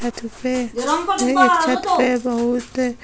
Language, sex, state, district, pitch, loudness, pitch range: Hindi, female, Bihar, Sitamarhi, 250 Hz, -19 LUFS, 245-300 Hz